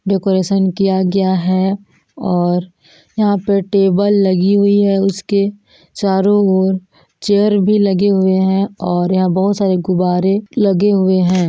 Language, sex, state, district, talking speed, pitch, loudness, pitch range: Hindi, female, Chhattisgarh, Balrampur, 140 wpm, 195 Hz, -14 LUFS, 185-200 Hz